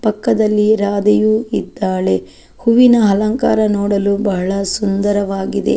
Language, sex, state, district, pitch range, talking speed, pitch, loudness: Kannada, female, Karnataka, Chamarajanagar, 195-215 Hz, 85 wpm, 205 Hz, -15 LUFS